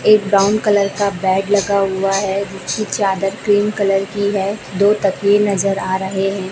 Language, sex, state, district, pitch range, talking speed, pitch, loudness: Hindi, female, Chhattisgarh, Raipur, 195-205 Hz, 185 wpm, 200 Hz, -16 LUFS